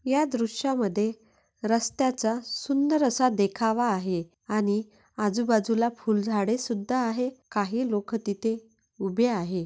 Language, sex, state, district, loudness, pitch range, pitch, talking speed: Marathi, female, Maharashtra, Nagpur, -27 LUFS, 210-245 Hz, 225 Hz, 110 wpm